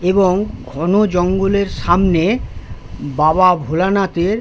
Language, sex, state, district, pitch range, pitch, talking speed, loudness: Bengali, male, West Bengal, Jhargram, 160-195 Hz, 180 Hz, 95 wpm, -15 LUFS